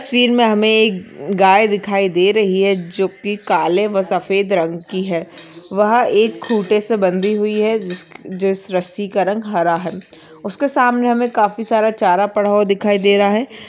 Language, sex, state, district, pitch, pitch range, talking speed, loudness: Hindi, female, Maharashtra, Aurangabad, 205 Hz, 190-220 Hz, 190 wpm, -16 LUFS